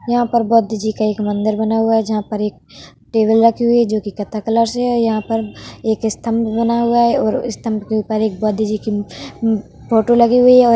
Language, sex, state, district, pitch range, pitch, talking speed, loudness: Hindi, female, Bihar, Vaishali, 215-235 Hz, 225 Hz, 250 wpm, -16 LUFS